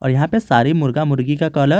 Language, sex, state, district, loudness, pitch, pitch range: Hindi, male, Jharkhand, Garhwa, -17 LUFS, 145 Hz, 135-155 Hz